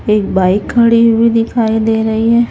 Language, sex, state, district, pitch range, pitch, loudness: Hindi, female, Chhattisgarh, Raipur, 220-230 Hz, 225 Hz, -12 LUFS